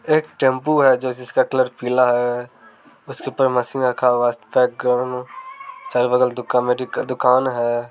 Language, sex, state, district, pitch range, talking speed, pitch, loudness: Maithili, male, Bihar, Samastipur, 125-135 Hz, 150 wpm, 125 Hz, -19 LUFS